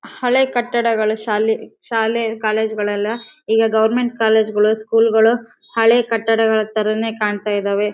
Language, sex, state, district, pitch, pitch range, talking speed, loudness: Kannada, female, Karnataka, Bellary, 220 Hz, 215-230 Hz, 150 wpm, -17 LUFS